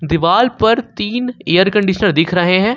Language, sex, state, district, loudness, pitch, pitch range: Hindi, male, Jharkhand, Ranchi, -14 LUFS, 205 Hz, 180-230 Hz